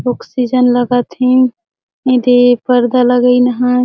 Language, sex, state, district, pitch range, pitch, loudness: Surgujia, female, Chhattisgarh, Sarguja, 245-250 Hz, 250 Hz, -12 LUFS